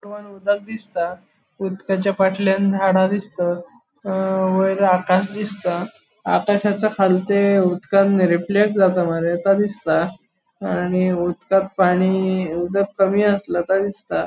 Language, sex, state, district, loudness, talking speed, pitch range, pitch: Konkani, male, Goa, North and South Goa, -19 LUFS, 110 wpm, 180-200 Hz, 195 Hz